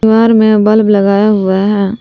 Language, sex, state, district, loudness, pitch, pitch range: Hindi, female, Jharkhand, Palamu, -9 LUFS, 210 Hz, 200-220 Hz